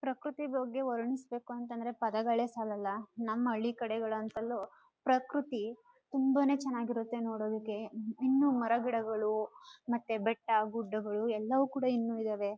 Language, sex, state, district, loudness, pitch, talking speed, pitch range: Kannada, female, Karnataka, Chamarajanagar, -34 LUFS, 235 Hz, 115 wpm, 220-260 Hz